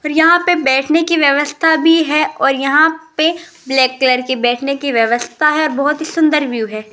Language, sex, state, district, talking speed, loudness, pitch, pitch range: Hindi, female, Rajasthan, Jaipur, 200 wpm, -13 LUFS, 300 Hz, 265-320 Hz